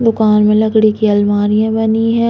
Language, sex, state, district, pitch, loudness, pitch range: Bundeli, female, Uttar Pradesh, Hamirpur, 215 Hz, -12 LUFS, 210-225 Hz